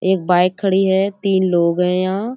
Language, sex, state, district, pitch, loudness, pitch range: Hindi, female, Uttar Pradesh, Budaun, 190 Hz, -16 LUFS, 180-195 Hz